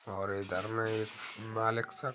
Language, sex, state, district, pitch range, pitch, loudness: Hindi, male, Uttar Pradesh, Hamirpur, 100-115 Hz, 110 Hz, -35 LUFS